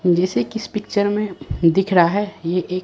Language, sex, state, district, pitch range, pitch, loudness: Hindi, male, Bihar, Katihar, 180-205 Hz, 190 Hz, -19 LUFS